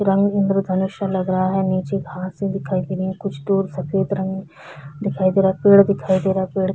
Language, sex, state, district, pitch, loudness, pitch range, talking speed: Hindi, female, Chhattisgarh, Korba, 190 Hz, -20 LUFS, 185-195 Hz, 220 wpm